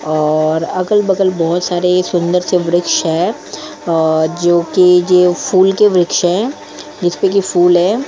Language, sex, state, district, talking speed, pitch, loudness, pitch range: Hindi, female, Goa, North and South Goa, 140 wpm, 180 Hz, -13 LUFS, 170-185 Hz